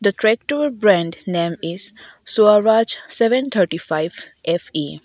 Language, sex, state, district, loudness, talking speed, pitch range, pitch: English, female, Arunachal Pradesh, Lower Dibang Valley, -18 LUFS, 105 wpm, 170-225 Hz, 200 Hz